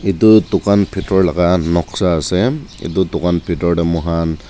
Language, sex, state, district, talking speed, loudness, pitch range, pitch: Nagamese, male, Nagaland, Dimapur, 160 wpm, -15 LUFS, 85-95 Hz, 90 Hz